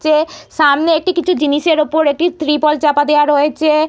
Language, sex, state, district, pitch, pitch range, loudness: Bengali, female, West Bengal, Purulia, 305 Hz, 295-320 Hz, -14 LUFS